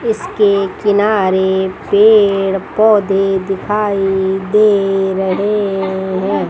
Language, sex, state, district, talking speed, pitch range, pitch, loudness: Hindi, female, Chandigarh, Chandigarh, 75 wpm, 190-210 Hz, 195 Hz, -13 LUFS